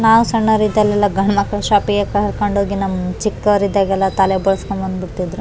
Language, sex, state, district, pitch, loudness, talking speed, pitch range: Kannada, female, Karnataka, Raichur, 200 Hz, -16 LUFS, 155 wpm, 195-205 Hz